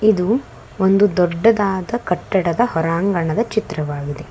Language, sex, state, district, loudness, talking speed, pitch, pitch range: Kannada, female, Karnataka, Bangalore, -18 LUFS, 85 wpm, 190 Hz, 170-220 Hz